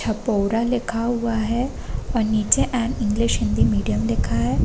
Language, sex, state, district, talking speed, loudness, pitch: Hindi, female, Chhattisgarh, Korba, 155 wpm, -21 LUFS, 220 Hz